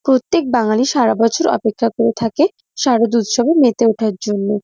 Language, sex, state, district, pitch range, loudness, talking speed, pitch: Bengali, female, West Bengal, North 24 Parganas, 220-265 Hz, -15 LUFS, 155 wpm, 230 Hz